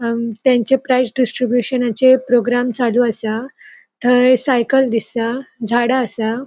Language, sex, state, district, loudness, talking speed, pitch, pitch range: Konkani, female, Goa, North and South Goa, -16 LUFS, 110 wpm, 245 Hz, 235-255 Hz